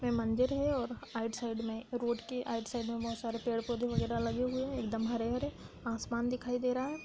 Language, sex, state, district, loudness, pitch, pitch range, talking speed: Hindi, female, Bihar, Darbhanga, -36 LUFS, 240 Hz, 230-250 Hz, 230 wpm